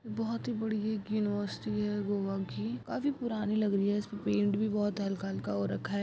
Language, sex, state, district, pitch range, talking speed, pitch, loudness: Hindi, female, Goa, North and South Goa, 195-215 Hz, 200 wpm, 205 Hz, -33 LUFS